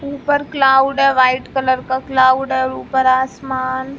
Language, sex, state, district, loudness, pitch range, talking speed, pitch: Hindi, female, Chhattisgarh, Bilaspur, -16 LUFS, 260-275 Hz, 150 wpm, 260 Hz